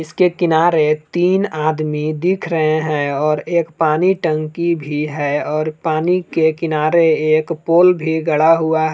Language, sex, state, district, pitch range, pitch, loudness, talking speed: Hindi, male, Jharkhand, Palamu, 155-170 Hz, 160 Hz, -16 LUFS, 155 wpm